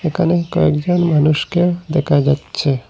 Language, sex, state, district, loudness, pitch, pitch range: Bengali, male, Assam, Hailakandi, -16 LUFS, 160 Hz, 145-175 Hz